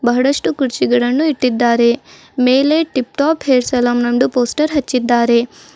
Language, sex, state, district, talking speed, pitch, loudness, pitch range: Kannada, female, Karnataka, Bidar, 115 wpm, 250 Hz, -15 LUFS, 240-280 Hz